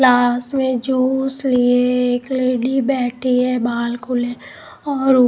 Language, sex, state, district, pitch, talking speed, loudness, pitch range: Hindi, female, Punjab, Pathankot, 250 Hz, 125 wpm, -18 LUFS, 245-260 Hz